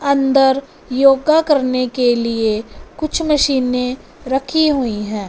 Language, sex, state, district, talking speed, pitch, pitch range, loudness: Hindi, female, Punjab, Fazilka, 115 wpm, 265 Hz, 250-280 Hz, -16 LUFS